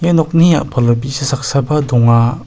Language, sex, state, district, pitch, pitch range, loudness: Garo, male, Meghalaya, South Garo Hills, 135 Hz, 120-155 Hz, -13 LUFS